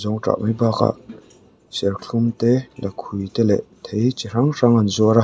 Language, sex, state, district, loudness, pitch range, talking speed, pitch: Mizo, male, Mizoram, Aizawl, -20 LUFS, 105-120 Hz, 170 wpm, 115 Hz